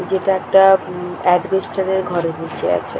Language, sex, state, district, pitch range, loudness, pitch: Bengali, female, West Bengal, Purulia, 180-190 Hz, -17 LUFS, 190 Hz